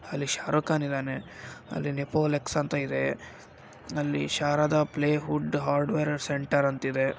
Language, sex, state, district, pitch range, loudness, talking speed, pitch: Kannada, male, Karnataka, Raichur, 135-150 Hz, -28 LUFS, 125 wpm, 140 Hz